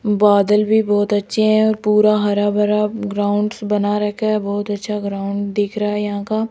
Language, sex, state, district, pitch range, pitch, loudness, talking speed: Hindi, female, Rajasthan, Jaipur, 205-210 Hz, 210 Hz, -17 LUFS, 205 wpm